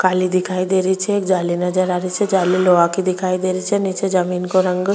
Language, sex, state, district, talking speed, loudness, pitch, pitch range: Rajasthani, female, Rajasthan, Churu, 280 wpm, -18 LUFS, 185 Hz, 180-190 Hz